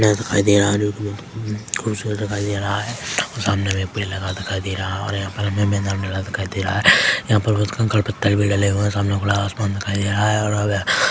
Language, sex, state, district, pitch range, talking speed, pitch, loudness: Hindi, male, Chhattisgarh, Korba, 100-105 Hz, 255 wpm, 100 Hz, -20 LUFS